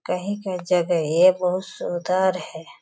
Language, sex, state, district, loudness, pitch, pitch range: Hindi, female, Bihar, Sitamarhi, -22 LUFS, 180 Hz, 175-185 Hz